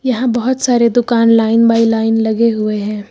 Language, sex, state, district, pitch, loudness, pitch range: Hindi, female, Uttar Pradesh, Lucknow, 230 Hz, -13 LUFS, 225-240 Hz